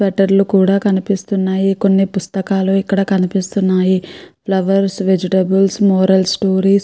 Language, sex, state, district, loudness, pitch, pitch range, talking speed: Telugu, female, Andhra Pradesh, Chittoor, -15 LUFS, 195 Hz, 190-195 Hz, 115 wpm